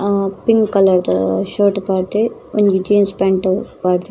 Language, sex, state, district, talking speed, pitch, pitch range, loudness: Tulu, female, Karnataka, Dakshina Kannada, 130 wpm, 195 Hz, 185-205 Hz, -16 LUFS